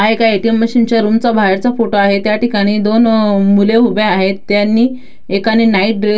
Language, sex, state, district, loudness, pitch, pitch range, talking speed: Marathi, female, Maharashtra, Dhule, -12 LUFS, 215 Hz, 205-230 Hz, 205 wpm